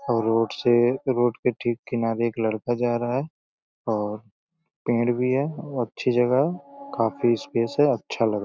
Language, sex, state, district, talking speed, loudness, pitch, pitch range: Hindi, male, Uttar Pradesh, Deoria, 185 wpm, -24 LUFS, 120 Hz, 115-130 Hz